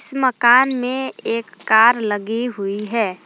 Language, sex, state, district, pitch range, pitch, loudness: Hindi, female, Jharkhand, Palamu, 215-250 Hz, 230 Hz, -17 LUFS